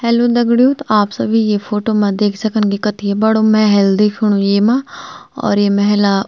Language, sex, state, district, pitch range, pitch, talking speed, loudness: Garhwali, female, Uttarakhand, Tehri Garhwal, 205-225 Hz, 210 Hz, 190 wpm, -14 LUFS